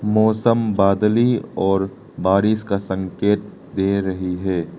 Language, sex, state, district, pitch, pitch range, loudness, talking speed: Hindi, male, Arunachal Pradesh, Lower Dibang Valley, 100 Hz, 95-110 Hz, -19 LUFS, 115 wpm